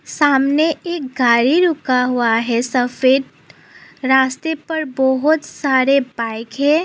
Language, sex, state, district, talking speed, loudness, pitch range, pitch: Hindi, female, Assam, Sonitpur, 115 wpm, -16 LUFS, 250-305 Hz, 265 Hz